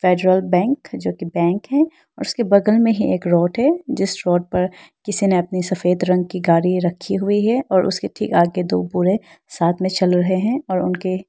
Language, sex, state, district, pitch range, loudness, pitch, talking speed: Hindi, female, Arunachal Pradesh, Lower Dibang Valley, 180-205 Hz, -18 LUFS, 185 Hz, 215 wpm